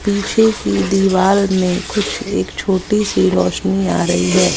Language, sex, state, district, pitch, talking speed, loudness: Hindi, female, Bihar, West Champaran, 190 Hz, 160 wpm, -16 LUFS